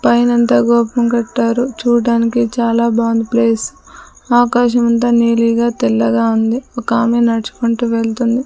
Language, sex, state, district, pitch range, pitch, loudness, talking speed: Telugu, female, Andhra Pradesh, Sri Satya Sai, 230-240 Hz, 235 Hz, -14 LUFS, 105 wpm